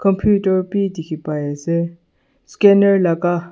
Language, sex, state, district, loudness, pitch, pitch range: Nagamese, male, Nagaland, Dimapur, -17 LUFS, 175 Hz, 170-195 Hz